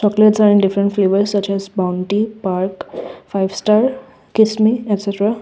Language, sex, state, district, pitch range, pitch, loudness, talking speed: English, female, Assam, Kamrup Metropolitan, 195-215 Hz, 205 Hz, -16 LUFS, 145 wpm